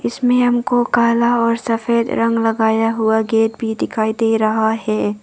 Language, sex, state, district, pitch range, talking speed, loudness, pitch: Hindi, female, Arunachal Pradesh, Papum Pare, 220-235 Hz, 160 wpm, -16 LUFS, 225 Hz